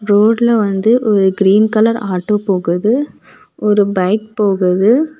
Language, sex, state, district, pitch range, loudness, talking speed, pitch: Tamil, female, Tamil Nadu, Kanyakumari, 195-225 Hz, -13 LUFS, 115 wpm, 210 Hz